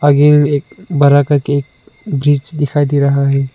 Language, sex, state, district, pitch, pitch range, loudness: Hindi, male, Arunachal Pradesh, Lower Dibang Valley, 145 Hz, 140-145 Hz, -13 LUFS